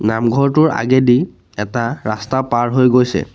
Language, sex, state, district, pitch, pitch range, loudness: Assamese, male, Assam, Sonitpur, 125 Hz, 110-130 Hz, -15 LUFS